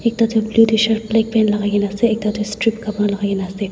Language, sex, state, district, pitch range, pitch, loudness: Nagamese, female, Nagaland, Dimapur, 205-225 Hz, 215 Hz, -17 LUFS